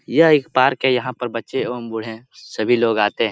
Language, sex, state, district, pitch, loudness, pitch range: Hindi, male, Bihar, Lakhisarai, 125 Hz, -19 LUFS, 115-130 Hz